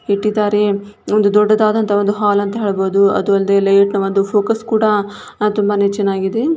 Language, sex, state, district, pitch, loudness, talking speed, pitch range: Kannada, female, Karnataka, Shimoga, 205 Hz, -15 LUFS, 145 wpm, 200-210 Hz